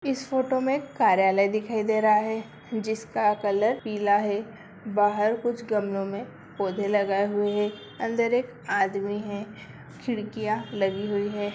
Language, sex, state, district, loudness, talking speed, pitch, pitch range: Hindi, female, Bihar, Begusarai, -26 LUFS, 145 wpm, 210 Hz, 205-220 Hz